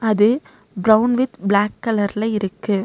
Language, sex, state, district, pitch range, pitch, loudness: Tamil, female, Tamil Nadu, Nilgiris, 205-225 Hz, 215 Hz, -19 LUFS